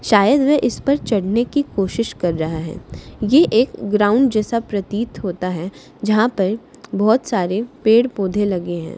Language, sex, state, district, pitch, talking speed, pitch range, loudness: Hindi, female, Haryana, Charkhi Dadri, 210 Hz, 165 wpm, 190-235 Hz, -18 LUFS